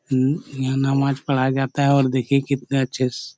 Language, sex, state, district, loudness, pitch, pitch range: Hindi, male, Chhattisgarh, Korba, -21 LUFS, 135 Hz, 130-140 Hz